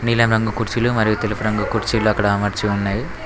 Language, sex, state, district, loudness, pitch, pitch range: Telugu, male, Telangana, Mahabubabad, -19 LUFS, 110 Hz, 105-115 Hz